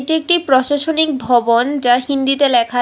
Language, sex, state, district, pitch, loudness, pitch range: Bengali, female, Tripura, West Tripura, 270 Hz, -14 LUFS, 245-290 Hz